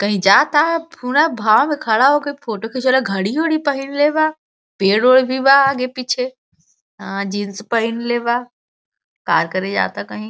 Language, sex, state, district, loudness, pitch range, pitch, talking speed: Hindi, female, Uttar Pradesh, Gorakhpur, -17 LUFS, 215-285 Hz, 250 Hz, 150 wpm